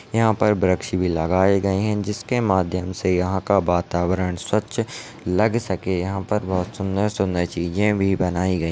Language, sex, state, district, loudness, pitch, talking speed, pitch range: Hindi, male, Chhattisgarh, Raigarh, -22 LUFS, 95 Hz, 180 wpm, 90-105 Hz